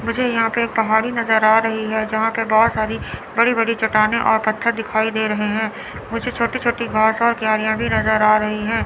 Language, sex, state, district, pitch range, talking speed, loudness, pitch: Hindi, female, Chandigarh, Chandigarh, 220-230 Hz, 210 wpm, -18 LUFS, 220 Hz